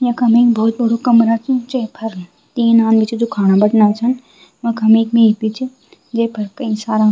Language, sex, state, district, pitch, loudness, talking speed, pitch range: Garhwali, female, Uttarakhand, Tehri Garhwal, 230 Hz, -15 LUFS, 185 wpm, 220-240 Hz